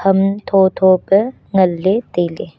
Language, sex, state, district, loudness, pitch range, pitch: Wancho, female, Arunachal Pradesh, Longding, -15 LUFS, 185-195 Hz, 190 Hz